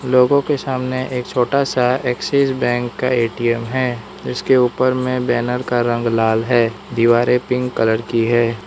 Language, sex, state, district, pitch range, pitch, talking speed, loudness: Hindi, male, Arunachal Pradesh, Lower Dibang Valley, 120-130 Hz, 125 Hz, 165 wpm, -17 LUFS